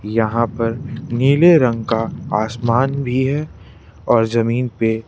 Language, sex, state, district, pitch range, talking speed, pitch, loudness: Hindi, male, Madhya Pradesh, Bhopal, 115-130 Hz, 130 wpm, 115 Hz, -17 LUFS